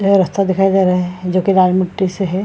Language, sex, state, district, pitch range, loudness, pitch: Hindi, female, Bihar, Lakhisarai, 185-195 Hz, -15 LUFS, 190 Hz